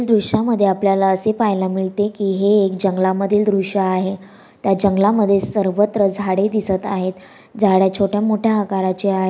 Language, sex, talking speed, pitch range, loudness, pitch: Marathi, female, 175 wpm, 190-210 Hz, -17 LUFS, 200 Hz